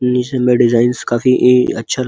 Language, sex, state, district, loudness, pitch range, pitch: Hindi, male, Uttar Pradesh, Muzaffarnagar, -13 LUFS, 120-125 Hz, 125 Hz